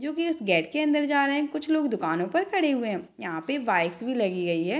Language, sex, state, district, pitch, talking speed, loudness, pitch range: Hindi, female, Bihar, Madhepura, 275 Hz, 285 wpm, -26 LUFS, 180-300 Hz